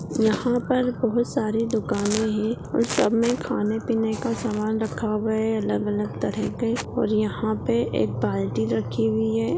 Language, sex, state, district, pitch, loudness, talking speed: Hindi, female, Bihar, Purnia, 215 Hz, -24 LUFS, 155 wpm